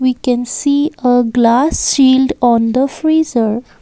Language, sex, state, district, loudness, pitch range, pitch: English, female, Assam, Kamrup Metropolitan, -13 LUFS, 240-280 Hz, 255 Hz